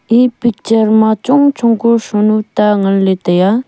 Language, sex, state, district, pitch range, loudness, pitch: Wancho, female, Arunachal Pradesh, Longding, 210-235 Hz, -12 LUFS, 220 Hz